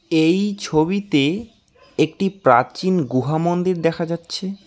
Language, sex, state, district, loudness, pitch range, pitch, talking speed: Bengali, male, West Bengal, Alipurduar, -19 LUFS, 160-195 Hz, 170 Hz, 105 wpm